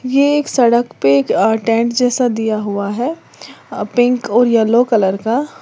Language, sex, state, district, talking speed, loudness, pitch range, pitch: Hindi, female, Uttar Pradesh, Lalitpur, 160 wpm, -15 LUFS, 220-250 Hz, 235 Hz